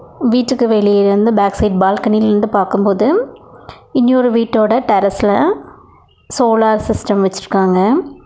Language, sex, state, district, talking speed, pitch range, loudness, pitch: Tamil, female, Tamil Nadu, Nilgiris, 95 wpm, 200-245 Hz, -13 LUFS, 215 Hz